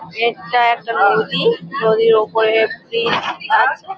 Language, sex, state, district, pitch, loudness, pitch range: Bengali, female, West Bengal, Malda, 230 Hz, -16 LUFS, 220-240 Hz